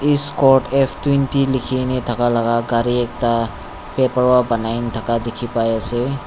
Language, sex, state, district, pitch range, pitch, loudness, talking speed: Nagamese, male, Nagaland, Dimapur, 115-130 Hz, 120 Hz, -17 LUFS, 95 wpm